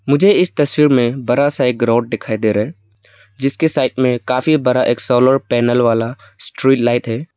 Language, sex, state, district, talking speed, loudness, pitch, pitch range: Hindi, male, Arunachal Pradesh, Lower Dibang Valley, 185 wpm, -15 LUFS, 125 Hz, 115-135 Hz